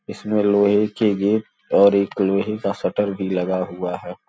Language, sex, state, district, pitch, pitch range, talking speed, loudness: Hindi, male, Uttar Pradesh, Gorakhpur, 100 Hz, 95-105 Hz, 180 wpm, -20 LUFS